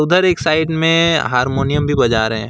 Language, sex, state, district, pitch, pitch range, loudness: Hindi, male, West Bengal, Alipurduar, 150 Hz, 125-165 Hz, -15 LUFS